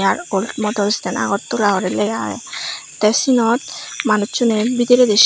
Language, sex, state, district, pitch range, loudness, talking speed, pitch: Chakma, female, Tripura, West Tripura, 205-240 Hz, -18 LUFS, 115 wpm, 215 Hz